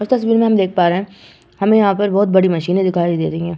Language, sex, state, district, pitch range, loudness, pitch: Hindi, female, Uttar Pradesh, Varanasi, 175-205 Hz, -15 LUFS, 190 Hz